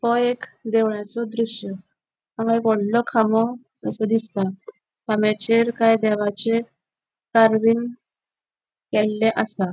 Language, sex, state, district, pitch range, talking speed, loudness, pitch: Konkani, female, Goa, North and South Goa, 215-230 Hz, 100 wpm, -21 LUFS, 225 Hz